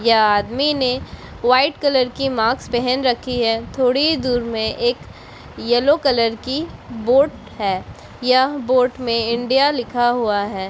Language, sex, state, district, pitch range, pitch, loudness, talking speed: Hindi, female, Bihar, Begusarai, 230-270 Hz, 250 Hz, -18 LUFS, 150 wpm